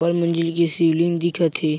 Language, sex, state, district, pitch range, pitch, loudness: Chhattisgarhi, male, Chhattisgarh, Bilaspur, 165-170 Hz, 170 Hz, -20 LUFS